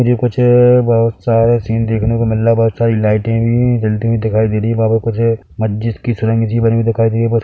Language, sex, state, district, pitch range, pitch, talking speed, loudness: Hindi, male, Chhattisgarh, Bilaspur, 110-115 Hz, 115 Hz, 275 wpm, -14 LUFS